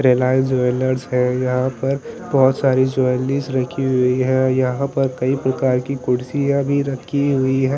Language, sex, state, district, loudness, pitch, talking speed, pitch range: Hindi, male, Chandigarh, Chandigarh, -18 LUFS, 130 Hz, 170 wpm, 130-135 Hz